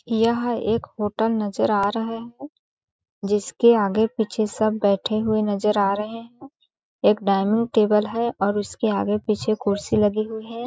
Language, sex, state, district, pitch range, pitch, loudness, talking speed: Hindi, female, Chhattisgarh, Balrampur, 210-230 Hz, 215 Hz, -22 LUFS, 170 wpm